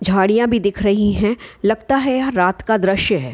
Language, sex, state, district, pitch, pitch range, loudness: Hindi, female, Bihar, Gopalganj, 210 Hz, 195-235 Hz, -17 LUFS